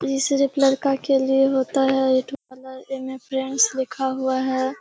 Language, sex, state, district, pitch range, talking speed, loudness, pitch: Hindi, female, Bihar, Kishanganj, 260-270 Hz, 150 wpm, -21 LUFS, 265 Hz